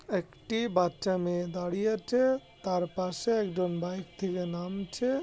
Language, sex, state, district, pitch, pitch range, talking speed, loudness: Bengali, male, West Bengal, Kolkata, 185 Hz, 175-220 Hz, 140 wpm, -31 LUFS